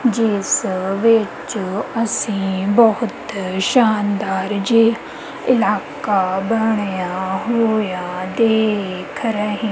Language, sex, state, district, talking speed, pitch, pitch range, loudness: Punjabi, female, Punjab, Kapurthala, 70 wpm, 210 Hz, 190-225 Hz, -18 LUFS